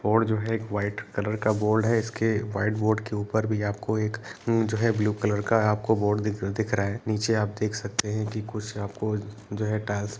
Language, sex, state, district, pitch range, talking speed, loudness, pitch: Hindi, male, Uttar Pradesh, Etah, 105-110 Hz, 225 wpm, -27 LUFS, 105 Hz